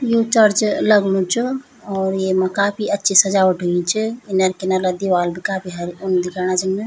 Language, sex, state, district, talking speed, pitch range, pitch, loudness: Garhwali, female, Uttarakhand, Tehri Garhwal, 165 wpm, 185-210 Hz, 190 Hz, -18 LUFS